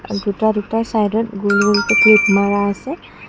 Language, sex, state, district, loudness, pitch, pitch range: Assamese, female, Assam, Kamrup Metropolitan, -15 LUFS, 210 Hz, 200-225 Hz